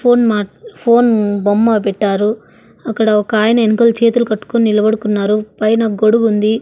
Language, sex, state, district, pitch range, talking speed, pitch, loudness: Telugu, female, Andhra Pradesh, Annamaya, 210-230 Hz, 120 wpm, 220 Hz, -13 LUFS